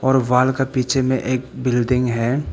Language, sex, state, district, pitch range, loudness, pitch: Hindi, male, Arunachal Pradesh, Papum Pare, 125-130 Hz, -19 LUFS, 130 Hz